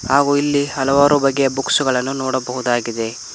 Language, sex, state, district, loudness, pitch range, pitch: Kannada, male, Karnataka, Koppal, -17 LUFS, 125-140 Hz, 135 Hz